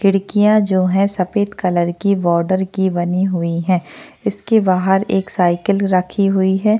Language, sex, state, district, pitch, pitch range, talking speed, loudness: Hindi, female, Maharashtra, Chandrapur, 190 Hz, 180-200 Hz, 160 wpm, -16 LUFS